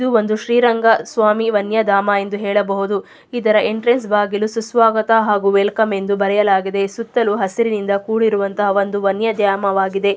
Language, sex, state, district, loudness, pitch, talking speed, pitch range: Kannada, female, Karnataka, Chamarajanagar, -16 LUFS, 210 Hz, 100 wpm, 200-225 Hz